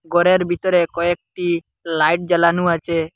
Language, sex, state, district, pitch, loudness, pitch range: Bengali, male, Assam, Hailakandi, 170 Hz, -18 LUFS, 170-175 Hz